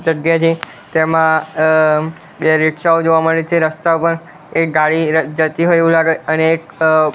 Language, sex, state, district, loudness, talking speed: Gujarati, male, Gujarat, Gandhinagar, -14 LUFS, 170 wpm